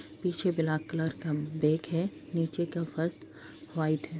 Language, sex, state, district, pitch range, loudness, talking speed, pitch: Hindi, female, Bihar, East Champaran, 155-170 Hz, -32 LUFS, 155 wpm, 160 Hz